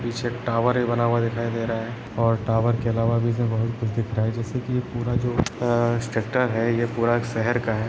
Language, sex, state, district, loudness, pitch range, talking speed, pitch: Hindi, male, Bihar, Jamui, -24 LUFS, 115-120 Hz, 245 wpm, 115 Hz